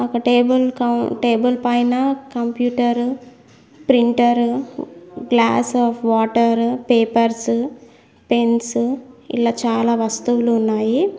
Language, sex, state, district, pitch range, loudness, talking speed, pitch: Telugu, female, Telangana, Mahabubabad, 235-250 Hz, -18 LUFS, 85 wpm, 240 Hz